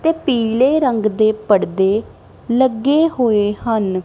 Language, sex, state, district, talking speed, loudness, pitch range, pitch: Punjabi, female, Punjab, Kapurthala, 120 wpm, -16 LUFS, 210-260 Hz, 225 Hz